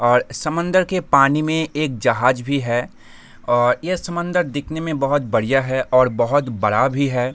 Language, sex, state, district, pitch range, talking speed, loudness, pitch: Hindi, male, Jharkhand, Sahebganj, 125-155 Hz, 190 wpm, -19 LUFS, 135 Hz